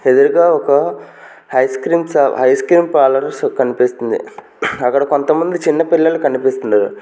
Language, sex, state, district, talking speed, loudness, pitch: Telugu, male, Andhra Pradesh, Manyam, 110 wpm, -14 LUFS, 165 Hz